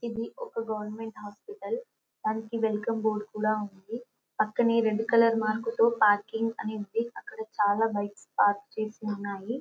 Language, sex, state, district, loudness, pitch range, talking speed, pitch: Telugu, female, Telangana, Karimnagar, -29 LUFS, 210-230 Hz, 145 wpm, 220 Hz